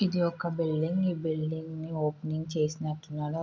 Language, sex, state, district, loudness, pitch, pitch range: Telugu, female, Andhra Pradesh, Srikakulam, -31 LUFS, 160 Hz, 155-165 Hz